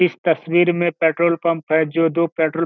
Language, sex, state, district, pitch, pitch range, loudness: Hindi, male, Bihar, Kishanganj, 165 Hz, 160-170 Hz, -18 LUFS